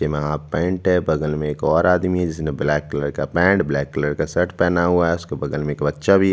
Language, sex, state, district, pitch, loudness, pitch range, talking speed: Hindi, male, Chhattisgarh, Bastar, 75 Hz, -20 LUFS, 75-90 Hz, 265 wpm